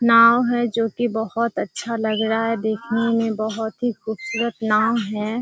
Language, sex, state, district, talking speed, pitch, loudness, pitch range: Hindi, female, Bihar, Kishanganj, 175 wpm, 225 Hz, -21 LUFS, 220-235 Hz